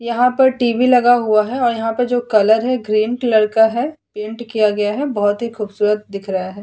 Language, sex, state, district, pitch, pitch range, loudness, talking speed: Hindi, female, Uttar Pradesh, Hamirpur, 225 Hz, 210-245 Hz, -16 LUFS, 235 wpm